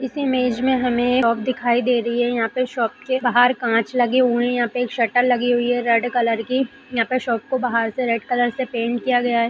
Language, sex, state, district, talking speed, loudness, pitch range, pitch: Hindi, female, Bihar, Madhepura, 260 wpm, -20 LUFS, 235-255 Hz, 245 Hz